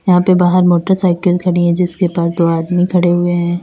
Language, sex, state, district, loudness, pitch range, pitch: Hindi, female, Uttar Pradesh, Lalitpur, -13 LUFS, 175-180 Hz, 175 Hz